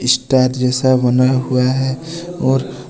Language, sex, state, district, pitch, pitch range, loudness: Hindi, male, Jharkhand, Deoghar, 130 Hz, 125-130 Hz, -15 LUFS